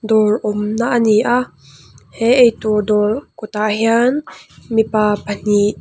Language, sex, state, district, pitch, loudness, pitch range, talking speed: Mizo, female, Mizoram, Aizawl, 215 Hz, -16 LUFS, 210-230 Hz, 115 wpm